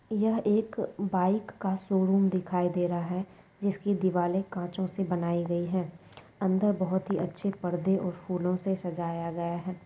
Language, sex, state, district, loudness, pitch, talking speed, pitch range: Hindi, female, West Bengal, Jalpaiguri, -30 LUFS, 185 Hz, 165 wpm, 175-195 Hz